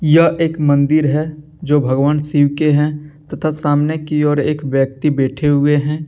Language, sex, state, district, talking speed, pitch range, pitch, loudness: Hindi, male, Jharkhand, Deoghar, 175 wpm, 145-155 Hz, 150 Hz, -15 LUFS